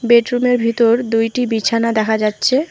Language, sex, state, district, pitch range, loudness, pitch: Bengali, female, West Bengal, Alipurduar, 225-245 Hz, -16 LUFS, 230 Hz